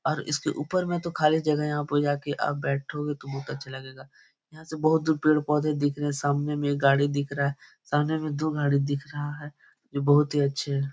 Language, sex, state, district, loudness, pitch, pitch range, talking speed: Hindi, male, Bihar, Jahanabad, -26 LUFS, 145 Hz, 140-150 Hz, 240 wpm